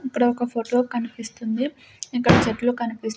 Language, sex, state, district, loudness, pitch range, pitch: Telugu, female, Andhra Pradesh, Sri Satya Sai, -23 LUFS, 230-245 Hz, 240 Hz